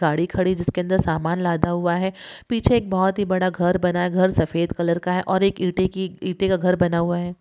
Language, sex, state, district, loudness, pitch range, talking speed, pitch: Hindi, female, Bihar, Sitamarhi, -21 LUFS, 175-185 Hz, 250 wpm, 180 Hz